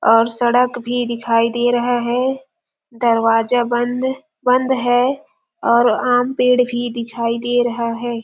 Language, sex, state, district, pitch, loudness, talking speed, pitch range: Hindi, female, Chhattisgarh, Sarguja, 245 Hz, -17 LUFS, 140 wpm, 235-250 Hz